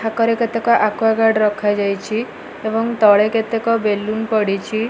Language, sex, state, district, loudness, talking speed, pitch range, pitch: Odia, female, Odisha, Malkangiri, -17 LUFS, 110 wpm, 210-225 Hz, 220 Hz